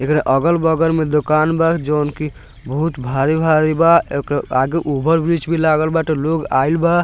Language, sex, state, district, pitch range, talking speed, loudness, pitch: Bhojpuri, male, Bihar, Muzaffarpur, 145-165 Hz, 170 wpm, -16 LUFS, 155 Hz